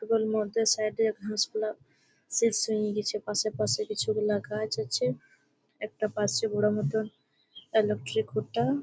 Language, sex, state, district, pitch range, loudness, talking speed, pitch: Bengali, female, West Bengal, Malda, 210-220 Hz, -29 LUFS, 145 wpm, 215 Hz